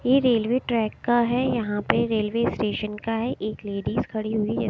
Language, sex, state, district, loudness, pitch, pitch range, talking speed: Hindi, female, Maharashtra, Mumbai Suburban, -24 LUFS, 225 Hz, 215-240 Hz, 215 wpm